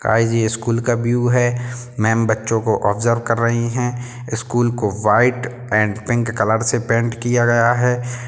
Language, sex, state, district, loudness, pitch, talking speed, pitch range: Hindi, male, Bihar, Sitamarhi, -18 LUFS, 120 Hz, 180 wpm, 115-120 Hz